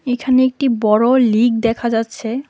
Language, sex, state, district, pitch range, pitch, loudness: Bengali, female, Tripura, West Tripura, 225-260 Hz, 240 Hz, -15 LUFS